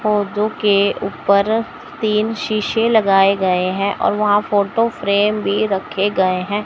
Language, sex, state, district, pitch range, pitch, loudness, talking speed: Hindi, male, Chandigarh, Chandigarh, 200-215 Hz, 205 Hz, -17 LUFS, 145 wpm